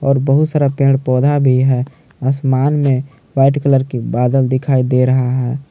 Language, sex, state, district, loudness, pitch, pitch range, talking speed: Hindi, male, Jharkhand, Palamu, -14 LUFS, 135 Hz, 130-140 Hz, 180 wpm